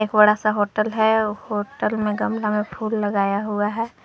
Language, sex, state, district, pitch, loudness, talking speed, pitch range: Hindi, female, Uttar Pradesh, Lucknow, 210 Hz, -21 LUFS, 190 wpm, 210-220 Hz